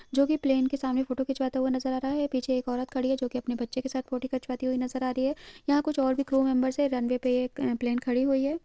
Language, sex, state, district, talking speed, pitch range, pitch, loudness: Hindi, female, Uttarakhand, Uttarkashi, 305 wpm, 255-270 Hz, 260 Hz, -28 LUFS